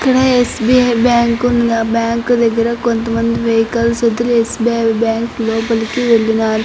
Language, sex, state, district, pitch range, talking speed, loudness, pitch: Telugu, female, Andhra Pradesh, Anantapur, 230-240 Hz, 110 wpm, -14 LUFS, 235 Hz